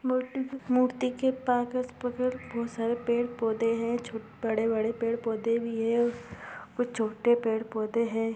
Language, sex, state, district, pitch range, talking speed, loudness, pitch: Hindi, female, Uttar Pradesh, Gorakhpur, 225-250 Hz, 115 wpm, -29 LUFS, 235 Hz